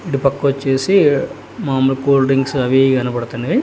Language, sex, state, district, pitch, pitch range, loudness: Telugu, male, Telangana, Hyderabad, 135 Hz, 130-140 Hz, -16 LUFS